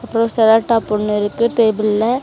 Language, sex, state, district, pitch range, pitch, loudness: Tamil, female, Tamil Nadu, Kanyakumari, 215-230 Hz, 225 Hz, -15 LUFS